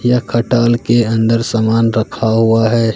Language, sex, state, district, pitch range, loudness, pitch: Hindi, male, Bihar, Katihar, 115-120 Hz, -13 LUFS, 115 Hz